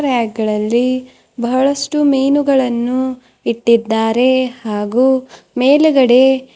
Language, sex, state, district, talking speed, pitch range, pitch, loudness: Kannada, female, Karnataka, Bidar, 65 wpm, 235-265 Hz, 255 Hz, -14 LUFS